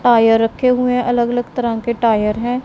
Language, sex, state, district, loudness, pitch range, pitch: Hindi, female, Punjab, Pathankot, -16 LUFS, 225-245 Hz, 240 Hz